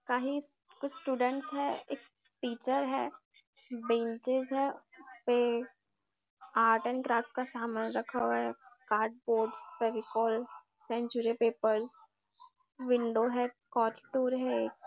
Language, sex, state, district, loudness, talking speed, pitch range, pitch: Hindi, female, Maharashtra, Nagpur, -32 LUFS, 110 wpm, 230-265 Hz, 245 Hz